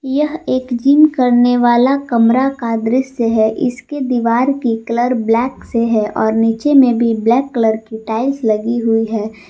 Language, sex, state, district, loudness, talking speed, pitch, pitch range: Hindi, female, Jharkhand, Palamu, -14 LUFS, 170 wpm, 240 Hz, 225-260 Hz